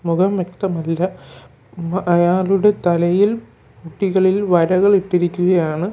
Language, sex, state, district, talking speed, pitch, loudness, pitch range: Malayalam, male, Kerala, Kollam, 80 wpm, 180 Hz, -17 LUFS, 170-190 Hz